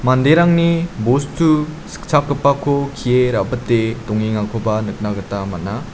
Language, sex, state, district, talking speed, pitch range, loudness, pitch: Garo, male, Meghalaya, South Garo Hills, 90 wpm, 110-145 Hz, -17 LUFS, 125 Hz